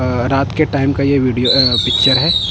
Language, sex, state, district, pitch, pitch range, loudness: Hindi, male, Punjab, Kapurthala, 135 Hz, 125-140 Hz, -13 LUFS